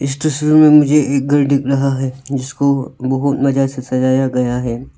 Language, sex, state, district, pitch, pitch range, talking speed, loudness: Hindi, male, Arunachal Pradesh, Lower Dibang Valley, 135 Hz, 130-140 Hz, 190 wpm, -15 LUFS